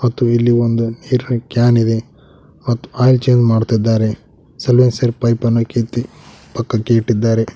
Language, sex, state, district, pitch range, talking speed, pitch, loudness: Kannada, male, Karnataka, Koppal, 115-120 Hz, 110 wpm, 120 Hz, -15 LUFS